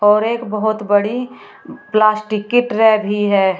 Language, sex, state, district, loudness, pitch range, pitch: Hindi, female, Uttar Pradesh, Shamli, -16 LUFS, 210-220 Hz, 215 Hz